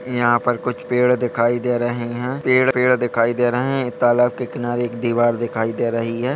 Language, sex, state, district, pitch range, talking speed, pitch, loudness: Hindi, male, Jharkhand, Sahebganj, 120-125 Hz, 205 wpm, 120 Hz, -19 LUFS